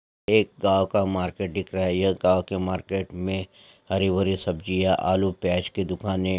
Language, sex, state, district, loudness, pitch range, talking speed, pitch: Hindi, male, Maharashtra, Pune, -25 LUFS, 90-95 Hz, 180 wpm, 95 Hz